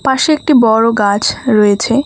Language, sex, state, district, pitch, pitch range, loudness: Bengali, female, West Bengal, Alipurduar, 235 Hz, 210-275 Hz, -11 LUFS